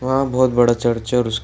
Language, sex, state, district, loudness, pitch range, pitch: Hindi, male, Bihar, Samastipur, -17 LUFS, 120-130 Hz, 120 Hz